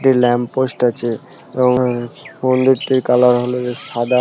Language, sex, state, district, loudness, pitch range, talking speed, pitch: Bengali, male, West Bengal, Purulia, -16 LUFS, 120-130 Hz, 155 wpm, 125 Hz